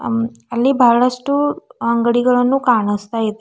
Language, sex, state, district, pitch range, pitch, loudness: Kannada, female, Karnataka, Bidar, 230-250 Hz, 240 Hz, -16 LUFS